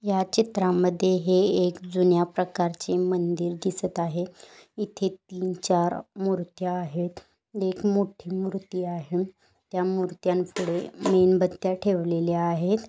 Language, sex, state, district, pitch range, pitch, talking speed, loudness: Marathi, female, Maharashtra, Pune, 175-190 Hz, 180 Hz, 105 wpm, -26 LUFS